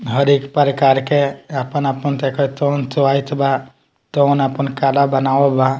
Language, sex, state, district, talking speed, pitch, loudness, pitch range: Bhojpuri, male, Bihar, Muzaffarpur, 145 wpm, 140 Hz, -17 LUFS, 135-140 Hz